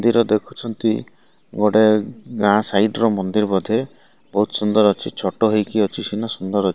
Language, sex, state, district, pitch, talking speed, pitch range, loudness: Odia, male, Odisha, Malkangiri, 105 Hz, 150 wpm, 100-110 Hz, -19 LUFS